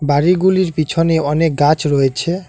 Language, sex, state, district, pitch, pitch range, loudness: Bengali, male, West Bengal, Alipurduar, 160 Hz, 145-170 Hz, -15 LUFS